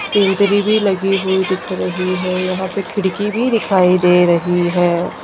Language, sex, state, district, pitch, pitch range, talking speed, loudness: Hindi, female, Madhya Pradesh, Dhar, 190 Hz, 180-200 Hz, 170 wpm, -15 LUFS